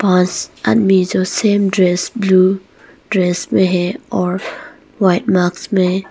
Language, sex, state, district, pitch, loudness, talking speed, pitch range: Hindi, female, Arunachal Pradesh, Longding, 185 Hz, -15 LUFS, 130 wpm, 180-195 Hz